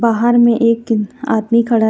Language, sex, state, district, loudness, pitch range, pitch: Hindi, female, Jharkhand, Deoghar, -14 LUFS, 225-235 Hz, 230 Hz